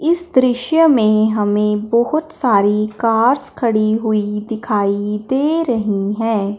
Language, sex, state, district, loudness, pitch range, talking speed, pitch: Hindi, male, Punjab, Fazilka, -16 LUFS, 210-255 Hz, 120 wpm, 220 Hz